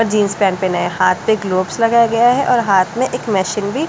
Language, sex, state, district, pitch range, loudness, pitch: Hindi, female, Delhi, New Delhi, 185-235 Hz, -15 LUFS, 205 Hz